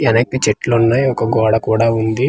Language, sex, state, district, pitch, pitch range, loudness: Telugu, male, Andhra Pradesh, Manyam, 115 Hz, 110-125 Hz, -15 LUFS